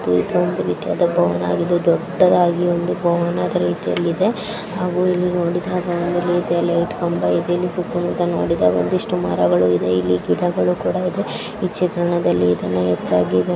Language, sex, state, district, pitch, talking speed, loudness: Kannada, female, Karnataka, Chamarajanagar, 170 Hz, 140 wpm, -19 LUFS